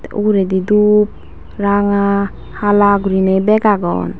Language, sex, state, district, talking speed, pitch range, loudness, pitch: Chakma, female, Tripura, Dhalai, 100 wpm, 190-210 Hz, -14 LUFS, 200 Hz